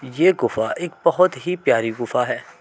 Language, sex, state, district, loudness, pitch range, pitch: Hindi, male, Uttar Pradesh, Muzaffarnagar, -20 LUFS, 130-180 Hz, 170 Hz